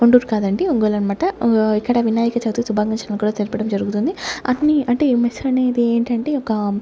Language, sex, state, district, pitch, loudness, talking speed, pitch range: Telugu, female, Andhra Pradesh, Sri Satya Sai, 230 Hz, -18 LUFS, 150 wpm, 210-245 Hz